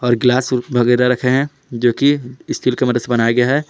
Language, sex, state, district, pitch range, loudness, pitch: Hindi, male, Jharkhand, Palamu, 120-130 Hz, -16 LUFS, 125 Hz